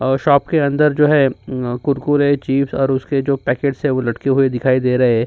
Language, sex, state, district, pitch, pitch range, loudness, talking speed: Hindi, male, Uttar Pradesh, Jyotiba Phule Nagar, 135 Hz, 130-140 Hz, -16 LUFS, 205 wpm